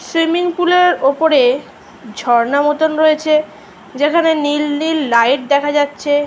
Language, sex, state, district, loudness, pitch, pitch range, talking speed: Bengali, female, West Bengal, Malda, -14 LUFS, 295 Hz, 275-315 Hz, 115 wpm